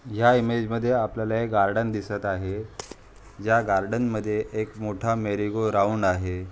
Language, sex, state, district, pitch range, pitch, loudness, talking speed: Marathi, male, Maharashtra, Aurangabad, 100-115 Hz, 110 Hz, -25 LUFS, 140 wpm